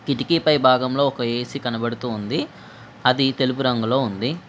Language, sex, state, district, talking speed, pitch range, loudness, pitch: Telugu, female, Telangana, Mahabubabad, 145 wpm, 120-135 Hz, -21 LUFS, 130 Hz